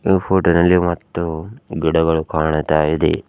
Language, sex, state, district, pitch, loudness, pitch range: Kannada, male, Karnataka, Bidar, 85 Hz, -17 LUFS, 80-90 Hz